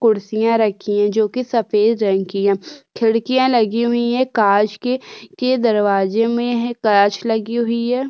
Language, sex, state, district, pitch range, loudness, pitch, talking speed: Hindi, female, Uttarakhand, Tehri Garhwal, 210-240 Hz, -17 LUFS, 225 Hz, 185 wpm